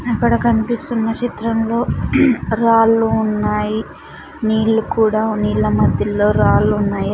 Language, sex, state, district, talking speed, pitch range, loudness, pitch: Telugu, female, Andhra Pradesh, Sri Satya Sai, 85 wpm, 200-230 Hz, -16 LUFS, 220 Hz